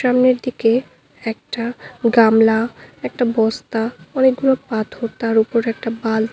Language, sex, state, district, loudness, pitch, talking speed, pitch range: Bengali, female, West Bengal, Cooch Behar, -18 LUFS, 230 Hz, 125 wpm, 225-250 Hz